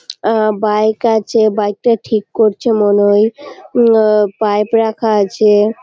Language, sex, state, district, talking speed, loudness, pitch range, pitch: Bengali, female, West Bengal, Malda, 135 wpm, -13 LUFS, 210-225 Hz, 215 Hz